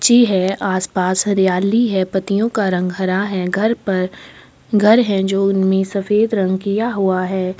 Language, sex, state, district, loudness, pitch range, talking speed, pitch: Hindi, female, Chhattisgarh, Sukma, -17 LUFS, 185-210 Hz, 175 wpm, 195 Hz